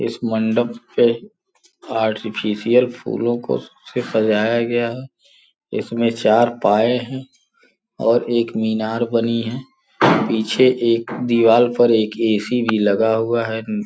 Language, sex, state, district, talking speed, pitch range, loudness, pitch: Hindi, male, Uttar Pradesh, Gorakhpur, 125 wpm, 110-120 Hz, -18 LUFS, 115 Hz